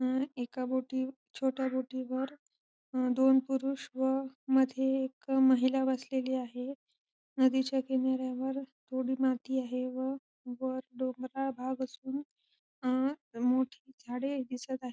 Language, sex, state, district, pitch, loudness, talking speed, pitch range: Marathi, female, Maharashtra, Sindhudurg, 260 Hz, -33 LUFS, 115 wpm, 255-265 Hz